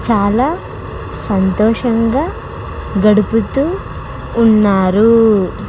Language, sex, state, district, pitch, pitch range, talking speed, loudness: Telugu, male, Andhra Pradesh, Sri Satya Sai, 225 Hz, 205-235 Hz, 40 wpm, -13 LUFS